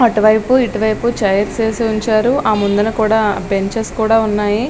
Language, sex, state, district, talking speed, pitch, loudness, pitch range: Telugu, female, Andhra Pradesh, Srikakulam, 125 wpm, 220 Hz, -15 LUFS, 210-225 Hz